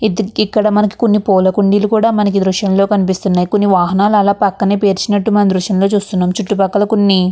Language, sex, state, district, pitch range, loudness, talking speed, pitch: Telugu, female, Andhra Pradesh, Chittoor, 190-210 Hz, -13 LUFS, 190 wpm, 205 Hz